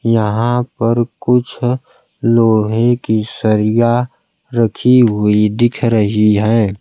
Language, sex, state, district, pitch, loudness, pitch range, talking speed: Hindi, male, Bihar, Kaimur, 115 Hz, -14 LUFS, 110-120 Hz, 95 wpm